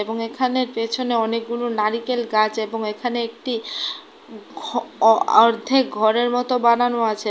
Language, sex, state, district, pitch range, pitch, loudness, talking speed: Bengali, female, Tripura, West Tripura, 220-245 Hz, 230 Hz, -20 LUFS, 130 wpm